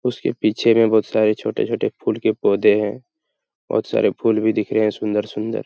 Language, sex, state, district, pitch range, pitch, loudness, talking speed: Hindi, male, Uttar Pradesh, Hamirpur, 105-115 Hz, 110 Hz, -19 LUFS, 190 wpm